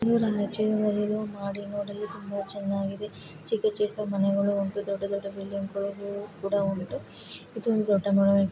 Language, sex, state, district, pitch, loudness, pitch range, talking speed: Kannada, female, Karnataka, Raichur, 200 Hz, -28 LUFS, 200-210 Hz, 135 wpm